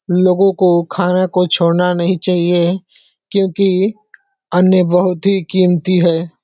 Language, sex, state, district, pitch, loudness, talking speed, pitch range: Hindi, male, Uttar Pradesh, Deoria, 180 Hz, -14 LUFS, 120 wpm, 175-190 Hz